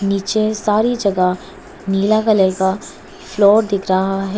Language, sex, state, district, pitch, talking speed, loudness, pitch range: Hindi, female, Arunachal Pradesh, Papum Pare, 200 Hz, 135 wpm, -16 LUFS, 190-215 Hz